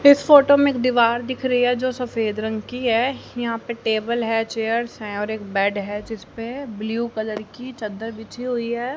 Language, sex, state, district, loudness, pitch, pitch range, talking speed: Hindi, female, Haryana, Charkhi Dadri, -21 LUFS, 230 Hz, 220-250 Hz, 205 wpm